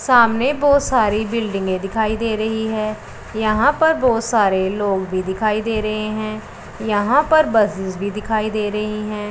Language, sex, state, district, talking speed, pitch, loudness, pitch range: Hindi, female, Punjab, Pathankot, 170 wpm, 215 Hz, -18 LUFS, 210-230 Hz